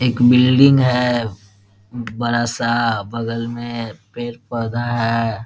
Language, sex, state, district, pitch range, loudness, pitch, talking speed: Hindi, male, Bihar, Muzaffarpur, 115-120 Hz, -18 LUFS, 120 Hz, 110 wpm